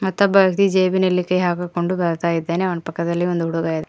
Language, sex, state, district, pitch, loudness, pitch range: Kannada, female, Karnataka, Koppal, 175 Hz, -19 LUFS, 170-185 Hz